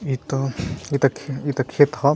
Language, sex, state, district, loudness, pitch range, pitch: Bhojpuri, male, Bihar, Gopalganj, -22 LUFS, 135-145 Hz, 140 Hz